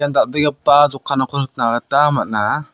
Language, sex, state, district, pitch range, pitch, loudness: Garo, male, Meghalaya, South Garo Hills, 135-145 Hz, 140 Hz, -16 LUFS